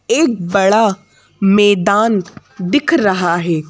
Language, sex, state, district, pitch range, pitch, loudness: Hindi, female, Madhya Pradesh, Bhopal, 180-210 Hz, 200 Hz, -14 LUFS